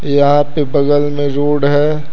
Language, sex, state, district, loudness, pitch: Hindi, male, Uttar Pradesh, Lucknow, -13 LUFS, 145 Hz